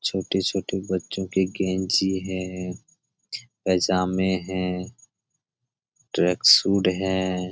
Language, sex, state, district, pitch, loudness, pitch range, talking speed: Hindi, male, Jharkhand, Sahebganj, 95 Hz, -23 LUFS, 95-110 Hz, 80 wpm